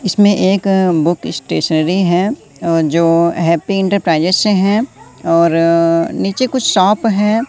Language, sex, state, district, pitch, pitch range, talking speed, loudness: Hindi, male, Madhya Pradesh, Katni, 180 Hz, 165-205 Hz, 145 wpm, -13 LUFS